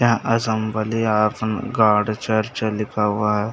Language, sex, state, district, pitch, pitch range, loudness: Hindi, male, Chhattisgarh, Bastar, 110 Hz, 105-115 Hz, -20 LUFS